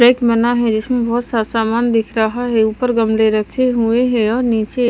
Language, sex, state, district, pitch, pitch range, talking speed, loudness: Hindi, female, Maharashtra, Washim, 235 Hz, 220-245 Hz, 220 wpm, -16 LUFS